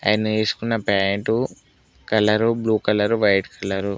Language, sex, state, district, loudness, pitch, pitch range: Telugu, male, Telangana, Mahabubabad, -20 LUFS, 105 Hz, 100-110 Hz